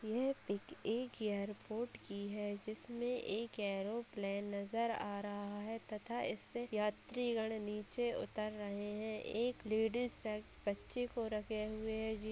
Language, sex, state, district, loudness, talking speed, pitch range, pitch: Hindi, female, Bihar, Purnia, -41 LUFS, 135 wpm, 205-235 Hz, 215 Hz